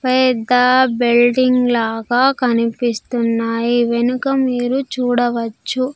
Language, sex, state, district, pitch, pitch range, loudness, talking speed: Telugu, female, Andhra Pradesh, Sri Satya Sai, 245 Hz, 235-255 Hz, -16 LUFS, 70 wpm